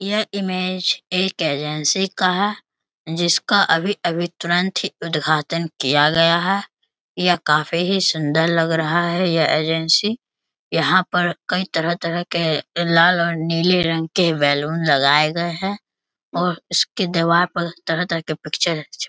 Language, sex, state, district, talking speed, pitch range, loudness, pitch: Hindi, male, Bihar, Bhagalpur, 140 wpm, 160-185 Hz, -19 LUFS, 170 Hz